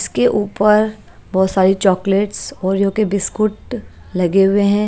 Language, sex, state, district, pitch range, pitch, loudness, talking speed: Hindi, female, Chhattisgarh, Raipur, 190-210 Hz, 200 Hz, -16 LUFS, 160 wpm